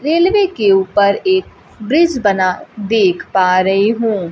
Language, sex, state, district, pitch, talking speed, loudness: Hindi, female, Bihar, Kaimur, 215 Hz, 140 wpm, -14 LUFS